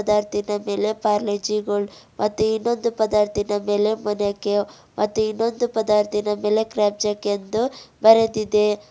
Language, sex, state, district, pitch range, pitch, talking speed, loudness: Kannada, female, Karnataka, Bidar, 205-220 Hz, 210 Hz, 115 wpm, -21 LUFS